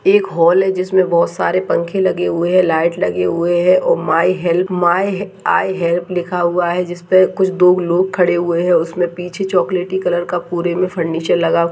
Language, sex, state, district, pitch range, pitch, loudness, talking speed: Hindi, female, Uttarakhand, Tehri Garhwal, 170-185 Hz, 175 Hz, -15 LUFS, 205 wpm